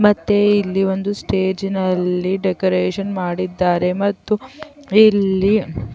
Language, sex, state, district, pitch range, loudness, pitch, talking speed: Kannada, female, Karnataka, Chamarajanagar, 185-205 Hz, -18 LUFS, 195 Hz, 90 wpm